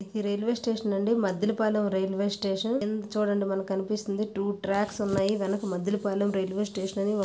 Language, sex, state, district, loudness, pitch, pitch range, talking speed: Telugu, female, Andhra Pradesh, Visakhapatnam, -28 LUFS, 205 Hz, 195-210 Hz, 150 wpm